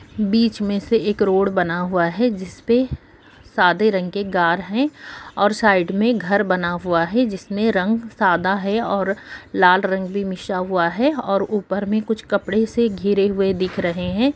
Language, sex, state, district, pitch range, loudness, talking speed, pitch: Hindi, female, Jharkhand, Sahebganj, 185-220 Hz, -19 LUFS, 180 wpm, 200 Hz